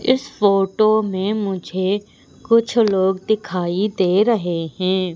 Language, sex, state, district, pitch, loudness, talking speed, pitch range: Hindi, female, Madhya Pradesh, Umaria, 200 Hz, -19 LUFS, 115 wpm, 185-215 Hz